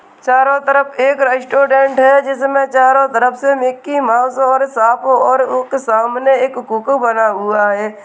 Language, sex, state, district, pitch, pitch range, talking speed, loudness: Hindi, male, Bihar, Kishanganj, 260 Hz, 240-275 Hz, 155 wpm, -13 LUFS